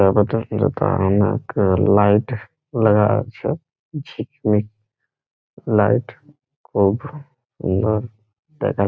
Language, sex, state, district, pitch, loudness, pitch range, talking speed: Bengali, male, West Bengal, Jhargram, 110 Hz, -19 LUFS, 105-140 Hz, 75 wpm